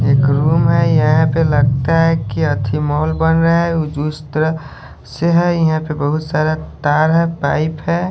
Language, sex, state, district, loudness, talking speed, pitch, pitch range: Hindi, male, Haryana, Charkhi Dadri, -15 LUFS, 185 wpm, 155 Hz, 145-160 Hz